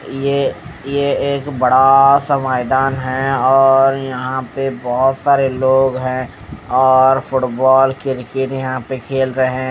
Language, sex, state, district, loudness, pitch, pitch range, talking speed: Hindi, male, Odisha, Malkangiri, -15 LUFS, 130 Hz, 130-135 Hz, 135 wpm